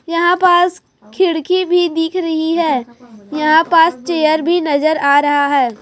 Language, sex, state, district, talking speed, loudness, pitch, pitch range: Hindi, female, Chhattisgarh, Raipur, 155 wpm, -14 LUFS, 325 Hz, 290-345 Hz